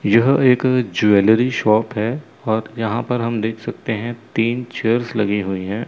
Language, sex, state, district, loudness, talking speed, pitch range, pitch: Hindi, male, Chandigarh, Chandigarh, -18 LUFS, 175 wpm, 110-125 Hz, 115 Hz